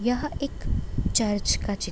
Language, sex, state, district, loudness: Hindi, female, Bihar, Gopalganj, -27 LUFS